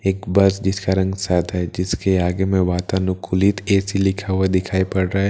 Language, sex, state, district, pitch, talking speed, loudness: Hindi, male, Bihar, Katihar, 95 Hz, 195 wpm, -19 LUFS